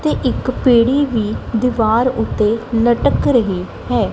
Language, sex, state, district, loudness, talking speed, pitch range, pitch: Punjabi, female, Punjab, Kapurthala, -16 LUFS, 130 wpm, 225-250 Hz, 235 Hz